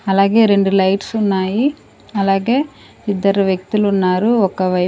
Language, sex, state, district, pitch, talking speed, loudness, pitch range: Telugu, female, Andhra Pradesh, Sri Satya Sai, 200 Hz, 110 wpm, -16 LUFS, 190-215 Hz